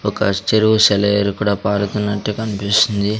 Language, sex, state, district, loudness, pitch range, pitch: Telugu, male, Andhra Pradesh, Sri Satya Sai, -16 LUFS, 100-110 Hz, 105 Hz